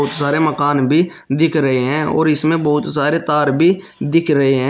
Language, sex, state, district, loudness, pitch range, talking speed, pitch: Hindi, male, Uttar Pradesh, Shamli, -15 LUFS, 145-160 Hz, 190 wpm, 150 Hz